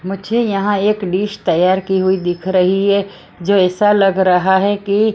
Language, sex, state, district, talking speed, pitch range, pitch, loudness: Hindi, female, Maharashtra, Mumbai Suburban, 185 wpm, 185-200 Hz, 195 Hz, -15 LUFS